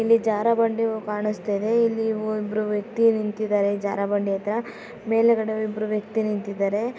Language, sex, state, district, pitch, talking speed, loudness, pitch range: Kannada, female, Karnataka, Raichur, 215 Hz, 130 wpm, -24 LUFS, 210-225 Hz